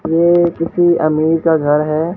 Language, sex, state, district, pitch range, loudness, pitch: Hindi, male, Bihar, Katihar, 155-170 Hz, -14 LUFS, 165 Hz